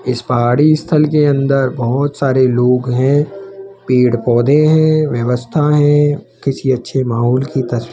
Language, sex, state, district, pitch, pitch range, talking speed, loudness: Hindi, male, Rajasthan, Jaipur, 135 Hz, 125-150 Hz, 150 wpm, -14 LUFS